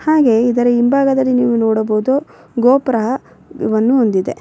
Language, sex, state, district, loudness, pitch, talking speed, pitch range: Kannada, female, Karnataka, Bellary, -14 LUFS, 245 Hz, 110 wpm, 225-265 Hz